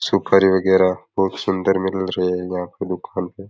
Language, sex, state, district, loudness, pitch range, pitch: Rajasthani, male, Rajasthan, Nagaur, -19 LUFS, 90-95 Hz, 95 Hz